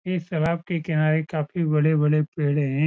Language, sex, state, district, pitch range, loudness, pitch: Hindi, male, Bihar, Saran, 150-170 Hz, -23 LUFS, 155 Hz